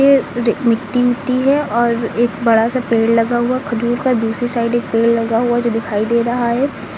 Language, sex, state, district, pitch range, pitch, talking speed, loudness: Hindi, female, Uttar Pradesh, Lucknow, 230-245 Hz, 235 Hz, 215 wpm, -16 LUFS